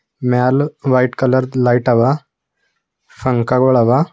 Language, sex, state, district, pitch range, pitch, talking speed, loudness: Kannada, male, Karnataka, Bidar, 125-135 Hz, 130 Hz, 100 wpm, -15 LUFS